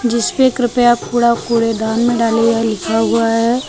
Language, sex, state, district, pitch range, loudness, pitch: Hindi, female, Uttar Pradesh, Lucknow, 225-240 Hz, -14 LUFS, 230 Hz